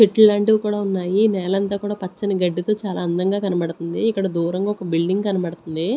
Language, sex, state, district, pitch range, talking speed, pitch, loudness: Telugu, female, Andhra Pradesh, Sri Satya Sai, 175-205 Hz, 160 wpm, 195 Hz, -20 LUFS